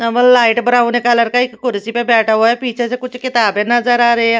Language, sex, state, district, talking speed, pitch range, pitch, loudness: Hindi, female, Haryana, Rohtak, 260 wpm, 230-245 Hz, 240 Hz, -13 LUFS